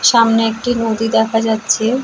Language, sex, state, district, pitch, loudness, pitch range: Bengali, female, West Bengal, Jalpaiguri, 225 Hz, -15 LUFS, 225-230 Hz